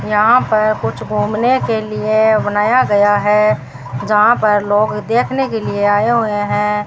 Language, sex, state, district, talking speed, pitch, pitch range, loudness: Hindi, female, Rajasthan, Bikaner, 155 wpm, 210 Hz, 205-215 Hz, -14 LUFS